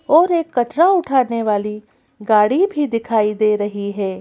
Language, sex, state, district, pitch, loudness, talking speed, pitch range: Hindi, female, Madhya Pradesh, Bhopal, 230 Hz, -17 LUFS, 155 wpm, 210-295 Hz